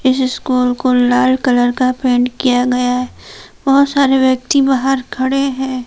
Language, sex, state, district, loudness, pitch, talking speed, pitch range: Hindi, female, Jharkhand, Palamu, -14 LUFS, 255 Hz, 165 wpm, 250-265 Hz